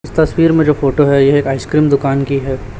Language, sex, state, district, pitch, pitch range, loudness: Hindi, male, Chhattisgarh, Raipur, 140 Hz, 135-150 Hz, -13 LUFS